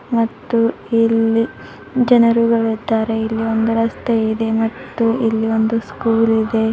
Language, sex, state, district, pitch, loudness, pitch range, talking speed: Kannada, female, Karnataka, Bidar, 225 Hz, -17 LUFS, 225-230 Hz, 105 wpm